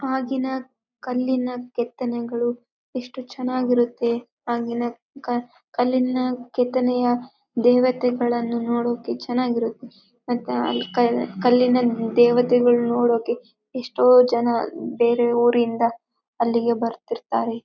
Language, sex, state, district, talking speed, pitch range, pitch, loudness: Kannada, female, Karnataka, Bellary, 90 wpm, 235-250 Hz, 245 Hz, -22 LUFS